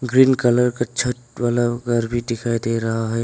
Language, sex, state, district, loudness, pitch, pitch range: Hindi, male, Arunachal Pradesh, Longding, -20 LUFS, 120 Hz, 115-125 Hz